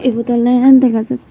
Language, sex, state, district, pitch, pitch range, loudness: Chakma, female, Tripura, Dhalai, 240 Hz, 230-255 Hz, -11 LUFS